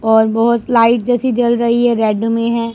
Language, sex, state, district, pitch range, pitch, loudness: Hindi, female, Punjab, Pathankot, 225-240 Hz, 235 Hz, -14 LUFS